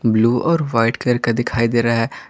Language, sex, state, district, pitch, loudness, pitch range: Hindi, male, Jharkhand, Garhwa, 120 Hz, -17 LUFS, 115-125 Hz